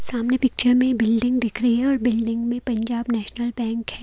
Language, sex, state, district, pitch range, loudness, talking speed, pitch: Hindi, female, Haryana, Jhajjar, 230-245 Hz, -21 LUFS, 210 wpm, 240 Hz